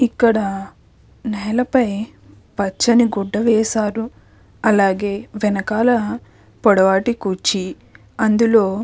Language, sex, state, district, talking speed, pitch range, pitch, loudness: Telugu, female, Andhra Pradesh, Krishna, 75 wpm, 200-230 Hz, 215 Hz, -18 LUFS